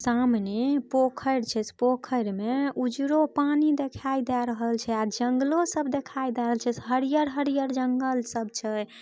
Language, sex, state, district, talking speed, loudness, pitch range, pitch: Maithili, female, Bihar, Samastipur, 140 wpm, -27 LUFS, 235-275 Hz, 255 Hz